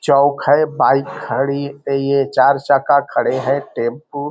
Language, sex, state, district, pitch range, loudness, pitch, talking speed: Hindi, male, Bihar, Araria, 135-145 Hz, -16 LUFS, 140 Hz, 155 wpm